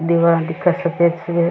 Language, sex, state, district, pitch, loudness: Rajasthani, female, Rajasthan, Churu, 170 Hz, -17 LUFS